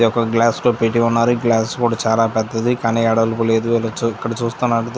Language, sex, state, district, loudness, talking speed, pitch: Telugu, male, Andhra Pradesh, Chittoor, -17 LUFS, 170 wpm, 115 Hz